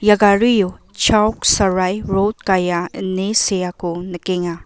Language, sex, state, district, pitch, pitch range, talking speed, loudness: Garo, female, Meghalaya, West Garo Hills, 190 Hz, 180-210 Hz, 115 wpm, -17 LUFS